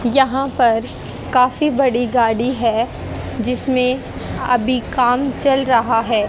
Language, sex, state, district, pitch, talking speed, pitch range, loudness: Hindi, female, Haryana, Jhajjar, 250 Hz, 115 wpm, 240-265 Hz, -17 LUFS